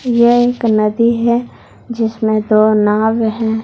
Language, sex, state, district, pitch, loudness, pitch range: Hindi, female, Jharkhand, Deoghar, 225 Hz, -13 LUFS, 215-235 Hz